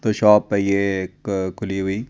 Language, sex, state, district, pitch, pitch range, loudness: Hindi, male, Chandigarh, Chandigarh, 100 Hz, 95-105 Hz, -20 LUFS